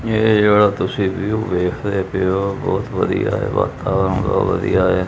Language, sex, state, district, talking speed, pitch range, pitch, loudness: Punjabi, male, Punjab, Kapurthala, 165 wpm, 95-105 Hz, 100 Hz, -18 LUFS